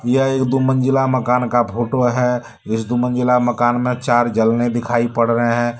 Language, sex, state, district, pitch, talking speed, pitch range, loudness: Hindi, male, Jharkhand, Deoghar, 120 Hz, 195 wpm, 120-125 Hz, -17 LUFS